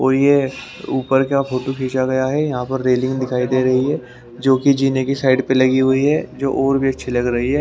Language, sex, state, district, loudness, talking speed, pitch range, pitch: Hindi, male, Haryana, Rohtak, -17 LUFS, 245 wpm, 130-135 Hz, 130 Hz